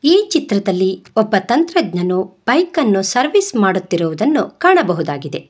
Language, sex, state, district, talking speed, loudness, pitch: Kannada, female, Karnataka, Bangalore, 100 wpm, -16 LUFS, 220 Hz